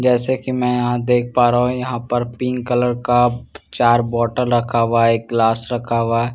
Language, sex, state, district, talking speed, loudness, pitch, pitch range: Hindi, male, Bihar, Katihar, 235 wpm, -18 LUFS, 120 Hz, 115-125 Hz